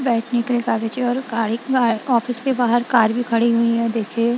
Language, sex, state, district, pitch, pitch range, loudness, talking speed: Hindi, female, Punjab, Kapurthala, 235 Hz, 230-245 Hz, -19 LUFS, 220 wpm